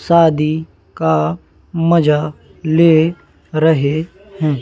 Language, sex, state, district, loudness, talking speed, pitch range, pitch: Hindi, male, Madhya Pradesh, Bhopal, -15 LUFS, 80 wpm, 150-165 Hz, 155 Hz